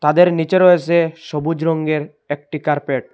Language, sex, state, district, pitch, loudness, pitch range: Bengali, male, Assam, Hailakandi, 155 Hz, -17 LUFS, 150-165 Hz